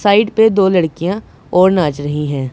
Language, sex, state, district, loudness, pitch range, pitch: Hindi, female, Punjab, Pathankot, -14 LUFS, 150-200 Hz, 185 Hz